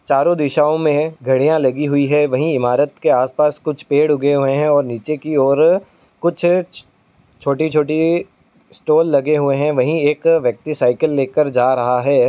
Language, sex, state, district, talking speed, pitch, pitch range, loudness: Hindi, male, Uttar Pradesh, Etah, 165 wpm, 150 Hz, 140-155 Hz, -16 LUFS